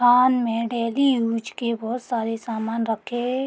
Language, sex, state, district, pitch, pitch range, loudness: Hindi, female, Uttar Pradesh, Deoria, 235 Hz, 230-245 Hz, -23 LUFS